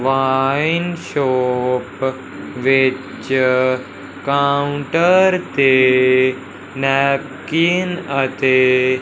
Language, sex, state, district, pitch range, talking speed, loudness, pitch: Hindi, male, Punjab, Fazilka, 130-140 Hz, 45 wpm, -16 LUFS, 135 Hz